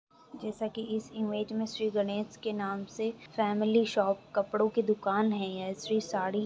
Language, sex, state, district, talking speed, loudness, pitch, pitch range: Bhojpuri, female, Bihar, Saran, 185 wpm, -32 LUFS, 215 Hz, 200-220 Hz